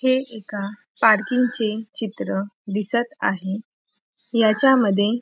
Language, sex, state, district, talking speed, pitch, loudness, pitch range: Marathi, female, Maharashtra, Pune, 105 wpm, 220 Hz, -22 LUFS, 205-240 Hz